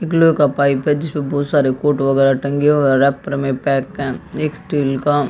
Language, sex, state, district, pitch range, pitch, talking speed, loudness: Hindi, female, Haryana, Jhajjar, 135-150 Hz, 145 Hz, 225 wpm, -17 LUFS